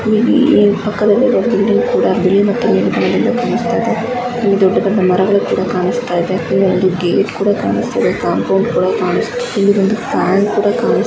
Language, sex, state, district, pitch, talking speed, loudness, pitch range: Kannada, female, Karnataka, Mysore, 205 Hz, 150 wpm, -14 LUFS, 190-230 Hz